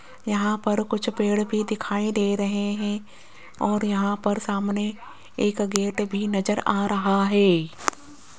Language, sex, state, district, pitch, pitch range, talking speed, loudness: Hindi, female, Rajasthan, Jaipur, 205 Hz, 200-210 Hz, 145 wpm, -24 LUFS